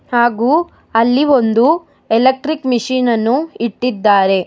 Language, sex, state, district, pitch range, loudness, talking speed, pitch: Kannada, female, Karnataka, Bangalore, 230-275 Hz, -14 LUFS, 95 wpm, 245 Hz